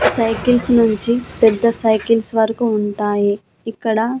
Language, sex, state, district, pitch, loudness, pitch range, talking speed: Telugu, female, Andhra Pradesh, Annamaya, 225 Hz, -16 LUFS, 215-235 Hz, 100 wpm